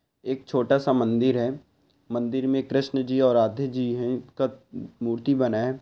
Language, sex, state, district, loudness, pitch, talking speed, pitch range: Hindi, male, Andhra Pradesh, Guntur, -25 LUFS, 130 Hz, 175 wpm, 120-135 Hz